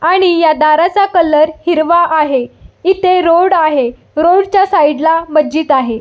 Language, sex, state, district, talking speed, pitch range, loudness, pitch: Marathi, female, Maharashtra, Solapur, 150 wpm, 305-360 Hz, -11 LUFS, 320 Hz